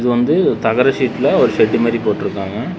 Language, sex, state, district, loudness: Tamil, male, Tamil Nadu, Namakkal, -15 LUFS